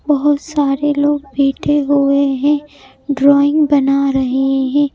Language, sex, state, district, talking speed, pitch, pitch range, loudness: Hindi, male, Madhya Pradesh, Bhopal, 120 wpm, 285 Hz, 275-290 Hz, -14 LUFS